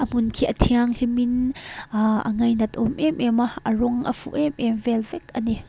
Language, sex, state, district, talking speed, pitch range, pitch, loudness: Mizo, female, Mizoram, Aizawl, 220 wpm, 230-250 Hz, 240 Hz, -22 LUFS